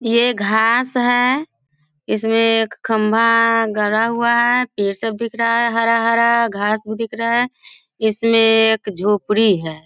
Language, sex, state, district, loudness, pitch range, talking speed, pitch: Hindi, female, Bihar, Sitamarhi, -16 LUFS, 215-235 Hz, 145 wpm, 225 Hz